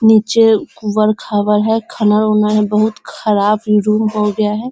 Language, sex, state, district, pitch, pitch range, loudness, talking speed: Hindi, female, Bihar, Sitamarhi, 215 Hz, 210-220 Hz, -14 LUFS, 205 wpm